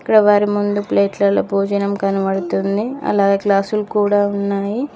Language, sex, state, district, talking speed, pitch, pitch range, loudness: Telugu, female, Telangana, Mahabubabad, 145 wpm, 200 Hz, 200-205 Hz, -17 LUFS